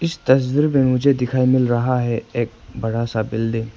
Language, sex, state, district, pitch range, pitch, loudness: Hindi, male, Arunachal Pradesh, Papum Pare, 115-130 Hz, 120 Hz, -19 LUFS